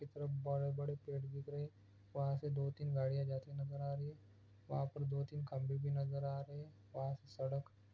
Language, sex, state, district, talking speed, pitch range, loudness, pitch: Hindi, male, Bihar, Araria, 225 wpm, 135-140 Hz, -43 LUFS, 140 Hz